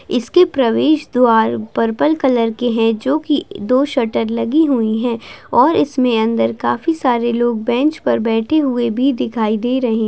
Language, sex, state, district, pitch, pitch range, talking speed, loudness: Hindi, female, Bihar, Begusarai, 245 Hz, 225-280 Hz, 165 wpm, -16 LUFS